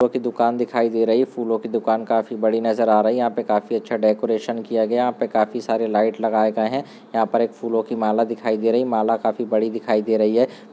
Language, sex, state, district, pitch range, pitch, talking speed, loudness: Hindi, male, Andhra Pradesh, Chittoor, 110-120 Hz, 115 Hz, 275 wpm, -21 LUFS